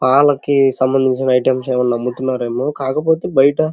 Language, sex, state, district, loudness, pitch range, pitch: Telugu, male, Andhra Pradesh, Krishna, -16 LUFS, 130-140 Hz, 130 Hz